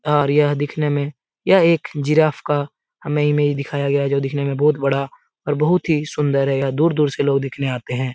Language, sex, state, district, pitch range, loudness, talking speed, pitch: Hindi, male, Bihar, Jahanabad, 140-150 Hz, -19 LUFS, 220 wpm, 145 Hz